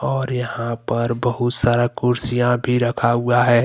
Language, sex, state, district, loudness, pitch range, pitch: Hindi, male, Jharkhand, Deoghar, -19 LUFS, 120-125 Hz, 120 Hz